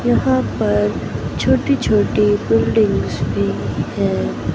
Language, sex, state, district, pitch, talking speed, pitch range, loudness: Hindi, male, Madhya Pradesh, Katni, 105 Hz, 90 wpm, 100-115 Hz, -17 LUFS